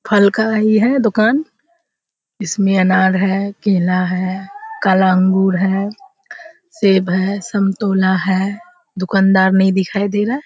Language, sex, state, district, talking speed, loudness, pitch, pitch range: Hindi, female, Bihar, Kishanganj, 130 wpm, -15 LUFS, 200 Hz, 190-220 Hz